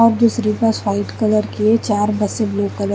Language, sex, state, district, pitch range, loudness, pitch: Hindi, female, Chandigarh, Chandigarh, 205-225 Hz, -17 LUFS, 215 Hz